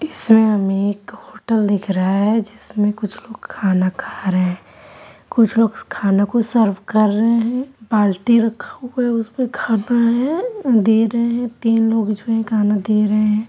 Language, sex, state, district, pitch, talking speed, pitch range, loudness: Hindi, female, Bihar, East Champaran, 220 Hz, 185 wpm, 205-235 Hz, -17 LUFS